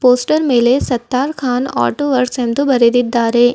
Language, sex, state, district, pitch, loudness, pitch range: Kannada, female, Karnataka, Bidar, 250 Hz, -14 LUFS, 240-265 Hz